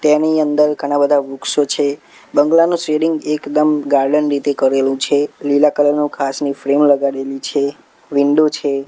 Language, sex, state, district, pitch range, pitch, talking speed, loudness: Gujarati, male, Gujarat, Gandhinagar, 140-150 Hz, 145 Hz, 150 wpm, -15 LUFS